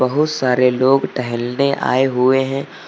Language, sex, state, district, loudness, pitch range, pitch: Hindi, male, Uttar Pradesh, Lucknow, -16 LUFS, 125-135 Hz, 130 Hz